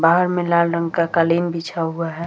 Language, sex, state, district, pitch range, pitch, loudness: Hindi, female, Bihar, Vaishali, 165-170 Hz, 170 Hz, -19 LUFS